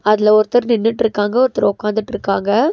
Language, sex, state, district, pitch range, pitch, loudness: Tamil, female, Tamil Nadu, Nilgiris, 210-235 Hz, 215 Hz, -16 LUFS